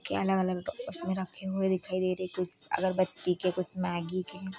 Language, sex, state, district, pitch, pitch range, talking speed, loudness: Hindi, female, Chhattisgarh, Kabirdham, 185 Hz, 180-190 Hz, 210 wpm, -32 LUFS